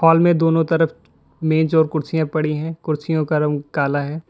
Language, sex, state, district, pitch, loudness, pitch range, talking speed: Hindi, male, Uttar Pradesh, Lalitpur, 160 Hz, -19 LUFS, 155-165 Hz, 195 wpm